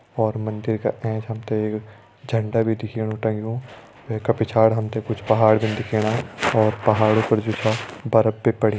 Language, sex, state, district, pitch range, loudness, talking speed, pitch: Hindi, male, Uttarakhand, Tehri Garhwal, 110-115 Hz, -22 LUFS, 185 wpm, 110 Hz